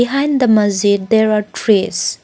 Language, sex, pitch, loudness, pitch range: English, female, 215 Hz, -14 LUFS, 205-245 Hz